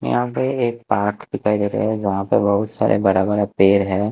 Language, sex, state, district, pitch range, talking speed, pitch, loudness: Hindi, male, Chandigarh, Chandigarh, 100-105 Hz, 220 wpm, 100 Hz, -19 LUFS